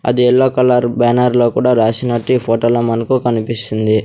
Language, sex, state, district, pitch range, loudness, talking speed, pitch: Telugu, male, Andhra Pradesh, Sri Satya Sai, 115-125 Hz, -14 LUFS, 175 wpm, 120 Hz